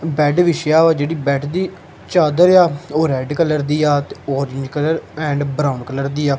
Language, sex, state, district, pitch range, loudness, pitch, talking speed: Punjabi, male, Punjab, Kapurthala, 140-160 Hz, -17 LUFS, 150 Hz, 205 wpm